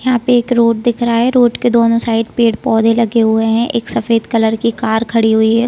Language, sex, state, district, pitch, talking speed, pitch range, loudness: Hindi, female, Bihar, Saran, 230 Hz, 245 wpm, 225-240 Hz, -13 LUFS